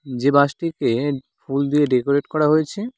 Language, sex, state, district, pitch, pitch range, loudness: Bengali, male, West Bengal, Cooch Behar, 145 Hz, 140-155 Hz, -19 LUFS